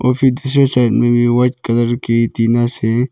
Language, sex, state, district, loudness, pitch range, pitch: Hindi, male, Arunachal Pradesh, Lower Dibang Valley, -14 LUFS, 115-125 Hz, 120 Hz